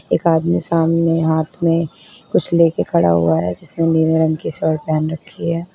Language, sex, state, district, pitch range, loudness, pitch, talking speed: Hindi, female, Uttar Pradesh, Lalitpur, 155-170 Hz, -17 LUFS, 160 Hz, 185 wpm